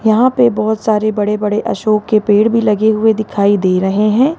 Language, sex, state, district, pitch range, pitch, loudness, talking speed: Hindi, female, Rajasthan, Jaipur, 210-220 Hz, 215 Hz, -13 LUFS, 220 wpm